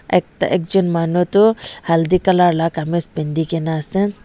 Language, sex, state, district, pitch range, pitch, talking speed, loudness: Nagamese, female, Nagaland, Dimapur, 165-190 Hz, 170 Hz, 170 wpm, -17 LUFS